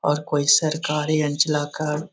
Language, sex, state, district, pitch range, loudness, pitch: Magahi, male, Bihar, Jahanabad, 150-155 Hz, -21 LUFS, 150 Hz